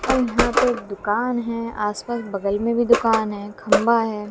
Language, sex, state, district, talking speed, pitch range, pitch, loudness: Hindi, female, Haryana, Jhajjar, 195 wpm, 210-240 Hz, 230 Hz, -21 LUFS